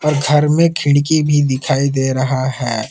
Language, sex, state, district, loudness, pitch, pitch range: Hindi, male, Jharkhand, Palamu, -15 LUFS, 140 Hz, 130-150 Hz